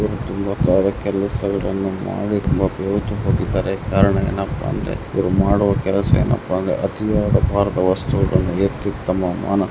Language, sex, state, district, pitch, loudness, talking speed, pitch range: Kannada, male, Karnataka, Mysore, 100 Hz, -19 LUFS, 85 wpm, 95-100 Hz